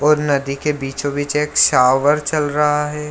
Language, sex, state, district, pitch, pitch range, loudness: Hindi, male, Bihar, Lakhisarai, 150 Hz, 140-150 Hz, -17 LUFS